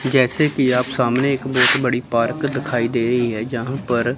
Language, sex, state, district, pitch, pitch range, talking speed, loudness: Hindi, female, Chandigarh, Chandigarh, 125 Hz, 120-135 Hz, 200 wpm, -18 LUFS